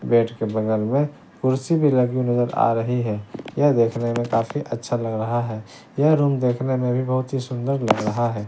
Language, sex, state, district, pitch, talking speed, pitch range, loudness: Hindi, male, Bihar, West Champaran, 120 Hz, 210 wpm, 115-130 Hz, -22 LUFS